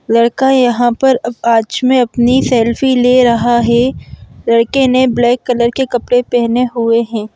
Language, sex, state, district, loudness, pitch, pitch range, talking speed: Hindi, female, Madhya Pradesh, Bhopal, -12 LUFS, 240 Hz, 235-255 Hz, 165 wpm